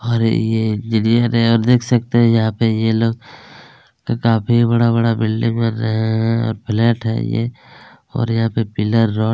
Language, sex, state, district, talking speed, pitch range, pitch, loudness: Hindi, male, Chhattisgarh, Kabirdham, 180 wpm, 110-115 Hz, 115 Hz, -17 LUFS